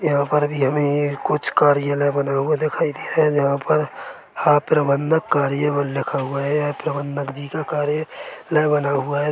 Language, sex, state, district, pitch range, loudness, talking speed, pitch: Hindi, male, Chhattisgarh, Korba, 140-150 Hz, -20 LUFS, 180 wpm, 145 Hz